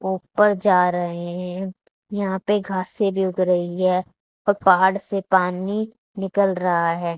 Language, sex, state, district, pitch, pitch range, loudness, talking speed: Hindi, female, Haryana, Charkhi Dadri, 190 Hz, 180-200 Hz, -21 LUFS, 150 wpm